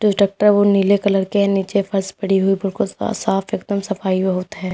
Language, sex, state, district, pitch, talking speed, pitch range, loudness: Hindi, female, Uttar Pradesh, Lalitpur, 195 Hz, 200 wpm, 195-200 Hz, -18 LUFS